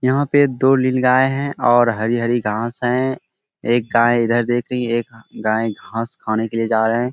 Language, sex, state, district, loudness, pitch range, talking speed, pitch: Hindi, male, Bihar, Bhagalpur, -18 LUFS, 115-130 Hz, 200 wpm, 120 Hz